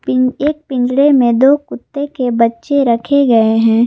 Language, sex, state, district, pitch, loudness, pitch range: Hindi, female, Jharkhand, Garhwa, 255 Hz, -13 LUFS, 235-280 Hz